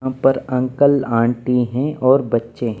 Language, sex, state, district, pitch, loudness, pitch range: Hindi, male, Maharashtra, Mumbai Suburban, 130 Hz, -17 LUFS, 120-135 Hz